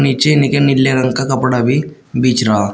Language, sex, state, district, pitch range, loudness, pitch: Hindi, male, Uttar Pradesh, Shamli, 125-140 Hz, -14 LUFS, 130 Hz